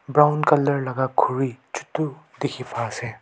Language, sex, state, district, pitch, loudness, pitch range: Nagamese, male, Nagaland, Kohima, 135 Hz, -23 LUFS, 125-150 Hz